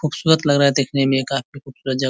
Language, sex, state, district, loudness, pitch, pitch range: Hindi, male, Uttar Pradesh, Ghazipur, -18 LUFS, 140 Hz, 135-145 Hz